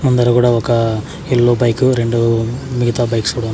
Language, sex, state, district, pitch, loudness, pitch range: Telugu, male, Andhra Pradesh, Sri Satya Sai, 120 Hz, -15 LUFS, 115-125 Hz